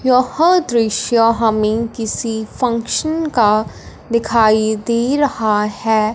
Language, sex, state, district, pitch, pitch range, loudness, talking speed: Hindi, female, Punjab, Fazilka, 230 Hz, 220-250 Hz, -16 LUFS, 95 wpm